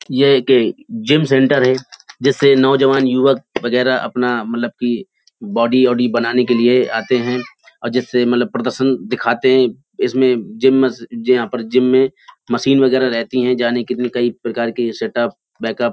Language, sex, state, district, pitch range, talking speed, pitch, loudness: Hindi, male, Uttar Pradesh, Hamirpur, 120-130 Hz, 175 wpm, 125 Hz, -16 LUFS